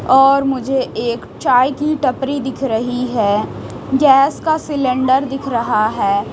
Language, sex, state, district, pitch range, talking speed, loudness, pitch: Hindi, female, Chhattisgarh, Raipur, 235-275 Hz, 140 wpm, -16 LUFS, 265 Hz